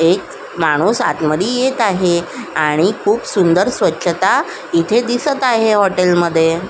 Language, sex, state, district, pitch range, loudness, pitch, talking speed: Marathi, female, Maharashtra, Solapur, 170-245 Hz, -15 LUFS, 190 Hz, 125 wpm